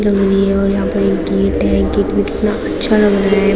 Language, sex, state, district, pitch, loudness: Hindi, female, Uttarakhand, Tehri Garhwal, 195 Hz, -14 LUFS